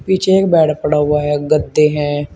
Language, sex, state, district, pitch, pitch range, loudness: Hindi, male, Uttar Pradesh, Shamli, 150 Hz, 150-165 Hz, -14 LUFS